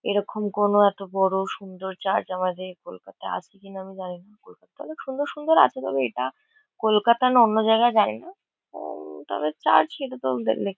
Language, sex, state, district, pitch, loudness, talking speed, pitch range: Bengali, female, West Bengal, Kolkata, 195 Hz, -23 LUFS, 180 wpm, 180-230 Hz